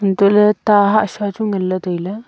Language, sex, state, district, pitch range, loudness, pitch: Wancho, female, Arunachal Pradesh, Longding, 190-210 Hz, -15 LUFS, 205 Hz